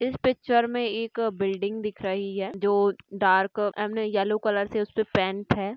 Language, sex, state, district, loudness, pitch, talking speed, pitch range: Hindi, female, Maharashtra, Nagpur, -26 LUFS, 210 Hz, 185 wpm, 195-220 Hz